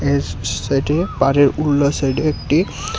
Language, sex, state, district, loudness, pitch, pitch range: Bengali, male, Tripura, West Tripura, -17 LUFS, 135 Hz, 110-145 Hz